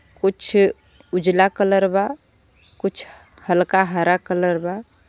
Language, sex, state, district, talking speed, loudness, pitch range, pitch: Bhojpuri, female, Jharkhand, Palamu, 105 wpm, -20 LUFS, 180-195 Hz, 190 Hz